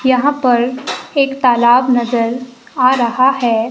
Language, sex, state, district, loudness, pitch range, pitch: Hindi, male, Himachal Pradesh, Shimla, -14 LUFS, 240-260 Hz, 250 Hz